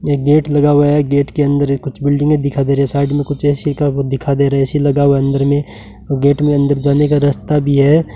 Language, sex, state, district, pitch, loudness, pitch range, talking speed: Hindi, male, Rajasthan, Bikaner, 140 Hz, -14 LUFS, 140-145 Hz, 265 wpm